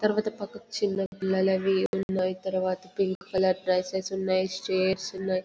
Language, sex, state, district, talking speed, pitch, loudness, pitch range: Telugu, female, Telangana, Karimnagar, 120 wpm, 190 Hz, -28 LUFS, 185-195 Hz